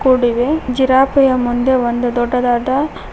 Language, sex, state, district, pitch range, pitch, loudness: Kannada, female, Karnataka, Koppal, 240-265 Hz, 255 Hz, -15 LUFS